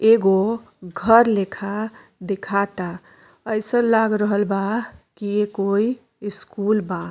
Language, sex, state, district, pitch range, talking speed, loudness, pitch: Bhojpuri, female, Uttar Pradesh, Deoria, 195-220 Hz, 110 wpm, -21 LUFS, 205 Hz